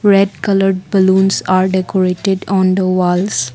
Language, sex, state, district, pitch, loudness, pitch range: English, female, Assam, Kamrup Metropolitan, 190 Hz, -14 LUFS, 185-195 Hz